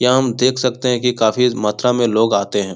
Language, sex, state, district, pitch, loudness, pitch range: Hindi, male, Bihar, Jahanabad, 120 Hz, -16 LUFS, 110-125 Hz